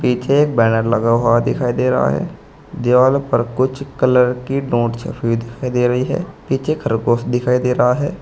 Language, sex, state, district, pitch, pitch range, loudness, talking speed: Hindi, male, Uttar Pradesh, Saharanpur, 125 Hz, 120-135 Hz, -17 LUFS, 195 wpm